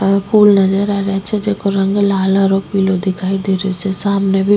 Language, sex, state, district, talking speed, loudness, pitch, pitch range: Rajasthani, female, Rajasthan, Nagaur, 225 wpm, -14 LUFS, 195 Hz, 195-200 Hz